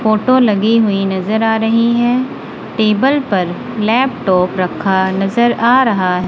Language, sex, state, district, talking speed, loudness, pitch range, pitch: Hindi, female, Punjab, Kapurthala, 135 wpm, -14 LUFS, 190-235 Hz, 220 Hz